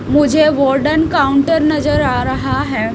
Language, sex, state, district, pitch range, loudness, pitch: Hindi, female, Haryana, Rohtak, 280-310 Hz, -14 LUFS, 295 Hz